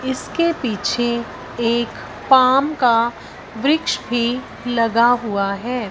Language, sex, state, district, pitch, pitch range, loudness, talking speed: Hindi, female, Punjab, Fazilka, 240 Hz, 230-260 Hz, -18 LUFS, 100 wpm